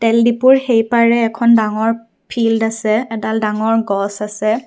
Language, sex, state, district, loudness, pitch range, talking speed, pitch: Assamese, female, Assam, Kamrup Metropolitan, -15 LUFS, 215-235 Hz, 140 wpm, 225 Hz